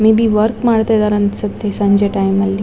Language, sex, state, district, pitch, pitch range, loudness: Kannada, female, Karnataka, Dakshina Kannada, 210 Hz, 200-220 Hz, -14 LUFS